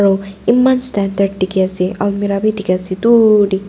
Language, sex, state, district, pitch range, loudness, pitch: Nagamese, female, Nagaland, Dimapur, 190-215 Hz, -14 LUFS, 200 Hz